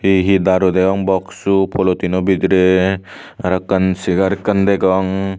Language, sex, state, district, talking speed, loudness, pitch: Chakma, male, Tripura, Unakoti, 135 wpm, -15 LUFS, 95 Hz